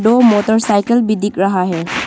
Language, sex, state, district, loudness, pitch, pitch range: Hindi, female, Arunachal Pradesh, Longding, -14 LUFS, 210 Hz, 195-225 Hz